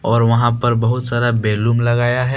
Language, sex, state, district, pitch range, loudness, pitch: Hindi, male, Jharkhand, Deoghar, 115-120 Hz, -16 LUFS, 120 Hz